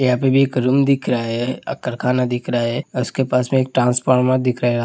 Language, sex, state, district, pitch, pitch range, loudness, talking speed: Hindi, male, Uttar Pradesh, Hamirpur, 125 Hz, 125-130 Hz, -18 LUFS, 285 wpm